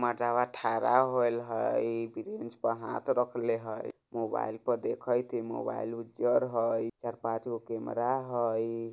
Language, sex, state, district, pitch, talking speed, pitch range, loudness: Bajjika, male, Bihar, Vaishali, 115 Hz, 135 wpm, 115-120 Hz, -32 LUFS